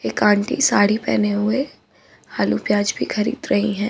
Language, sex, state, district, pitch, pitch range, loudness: Hindi, female, Uttar Pradesh, Budaun, 210 Hz, 205-215 Hz, -19 LUFS